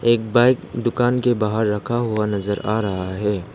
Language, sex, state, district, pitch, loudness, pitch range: Hindi, male, Arunachal Pradesh, Lower Dibang Valley, 110 Hz, -20 LUFS, 105-120 Hz